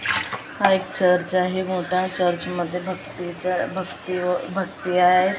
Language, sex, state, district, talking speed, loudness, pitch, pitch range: Marathi, female, Maharashtra, Gondia, 135 wpm, -23 LUFS, 180 Hz, 180-185 Hz